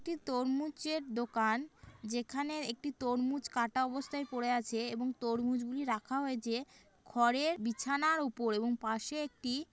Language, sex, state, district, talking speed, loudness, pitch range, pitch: Bengali, female, West Bengal, Kolkata, 125 wpm, -35 LUFS, 235-285 Hz, 250 Hz